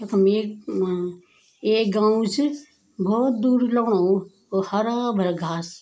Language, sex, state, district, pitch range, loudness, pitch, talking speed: Garhwali, female, Uttarakhand, Tehri Garhwal, 190-235 Hz, -22 LUFS, 210 Hz, 145 wpm